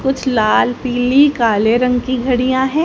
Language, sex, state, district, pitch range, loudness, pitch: Hindi, female, Haryana, Charkhi Dadri, 245-265 Hz, -14 LUFS, 250 Hz